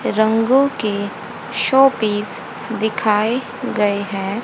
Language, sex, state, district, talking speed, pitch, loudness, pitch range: Hindi, female, Haryana, Rohtak, 95 wpm, 220 Hz, -18 LUFS, 210-245 Hz